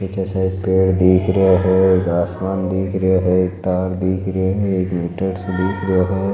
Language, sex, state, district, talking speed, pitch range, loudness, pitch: Marwari, male, Rajasthan, Nagaur, 200 wpm, 90-95 Hz, -17 LUFS, 95 Hz